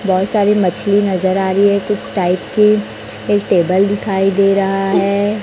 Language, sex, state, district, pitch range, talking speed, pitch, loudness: Hindi, male, Chhattisgarh, Raipur, 190-205 Hz, 175 wpm, 195 Hz, -14 LUFS